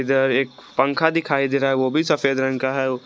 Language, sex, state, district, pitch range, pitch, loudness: Hindi, male, Jharkhand, Garhwa, 130-140 Hz, 135 Hz, -20 LUFS